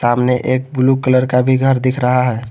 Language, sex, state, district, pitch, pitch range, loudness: Hindi, male, Jharkhand, Garhwa, 130 Hz, 125-130 Hz, -14 LUFS